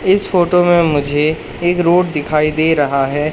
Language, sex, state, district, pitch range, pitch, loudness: Hindi, male, Madhya Pradesh, Katni, 150-175 Hz, 160 Hz, -14 LUFS